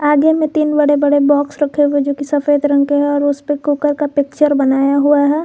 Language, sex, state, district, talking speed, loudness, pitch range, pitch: Hindi, female, Jharkhand, Garhwa, 255 wpm, -14 LUFS, 285-295 Hz, 290 Hz